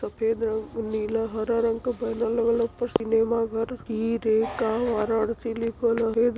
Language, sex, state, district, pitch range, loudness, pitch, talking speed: Hindi, female, Uttar Pradesh, Varanasi, 225-230 Hz, -26 LUFS, 230 Hz, 160 wpm